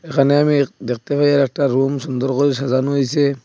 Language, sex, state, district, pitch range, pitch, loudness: Bengali, male, Assam, Hailakandi, 130-145 Hz, 140 Hz, -17 LUFS